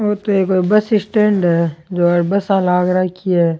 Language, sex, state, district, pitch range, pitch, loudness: Rajasthani, male, Rajasthan, Churu, 175-205 Hz, 185 Hz, -15 LUFS